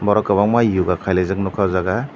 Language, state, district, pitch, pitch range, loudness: Kokborok, Tripura, Dhalai, 100 Hz, 95-105 Hz, -18 LUFS